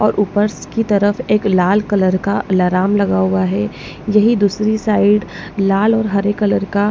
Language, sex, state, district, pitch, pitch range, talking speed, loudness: Hindi, female, Punjab, Pathankot, 205 Hz, 190-210 Hz, 180 wpm, -15 LUFS